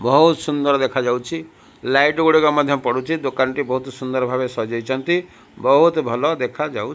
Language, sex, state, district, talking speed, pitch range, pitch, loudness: Odia, male, Odisha, Malkangiri, 140 wpm, 130-155 Hz, 135 Hz, -19 LUFS